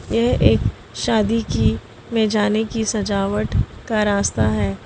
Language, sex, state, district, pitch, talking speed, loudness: Hindi, female, Gujarat, Valsad, 200 Hz, 135 wpm, -19 LUFS